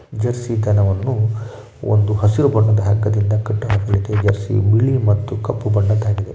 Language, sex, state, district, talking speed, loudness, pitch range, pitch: Kannada, male, Karnataka, Shimoga, 125 wpm, -17 LUFS, 105-115 Hz, 105 Hz